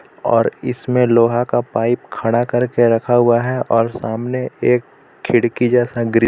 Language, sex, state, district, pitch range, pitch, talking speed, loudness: Hindi, male, Jharkhand, Palamu, 115-125 Hz, 120 Hz, 160 wpm, -16 LUFS